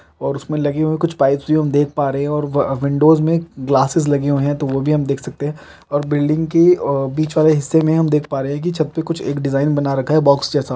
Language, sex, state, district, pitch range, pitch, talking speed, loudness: Hindi, male, Chhattisgarh, Raigarh, 140-155 Hz, 145 Hz, 270 wpm, -17 LUFS